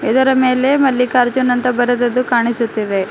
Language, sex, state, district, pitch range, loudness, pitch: Kannada, female, Karnataka, Bidar, 240-255 Hz, -15 LUFS, 250 Hz